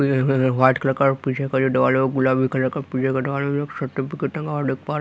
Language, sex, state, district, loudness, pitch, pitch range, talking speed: Hindi, male, Haryana, Rohtak, -21 LUFS, 135 Hz, 130-140 Hz, 275 wpm